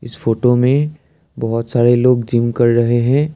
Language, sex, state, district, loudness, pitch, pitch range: Hindi, male, Assam, Sonitpur, -15 LUFS, 120 Hz, 120-125 Hz